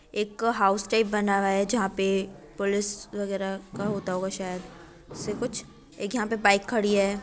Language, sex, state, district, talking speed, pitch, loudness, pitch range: Hindi, female, Uttar Pradesh, Jyotiba Phule Nagar, 185 wpm, 200 Hz, -27 LUFS, 195-210 Hz